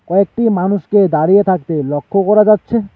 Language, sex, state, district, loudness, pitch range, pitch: Bengali, male, West Bengal, Alipurduar, -13 LUFS, 175-210 Hz, 195 Hz